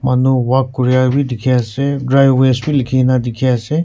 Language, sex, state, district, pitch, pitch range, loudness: Nagamese, male, Nagaland, Kohima, 130 Hz, 125-135 Hz, -14 LUFS